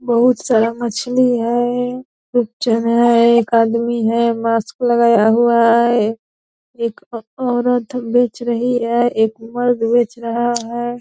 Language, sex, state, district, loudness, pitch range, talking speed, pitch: Hindi, female, Bihar, Purnia, -16 LUFS, 230-245 Hz, 130 wpm, 235 Hz